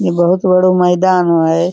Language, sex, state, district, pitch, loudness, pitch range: Hindi, female, Uttar Pradesh, Budaun, 180 Hz, -12 LUFS, 175-185 Hz